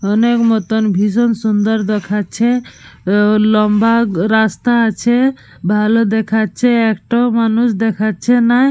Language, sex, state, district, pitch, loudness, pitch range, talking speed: Bengali, female, Jharkhand, Jamtara, 220 Hz, -14 LUFS, 210-235 Hz, 95 wpm